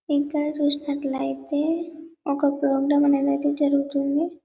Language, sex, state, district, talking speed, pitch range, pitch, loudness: Telugu, female, Telangana, Karimnagar, 80 wpm, 280-300 Hz, 290 Hz, -23 LUFS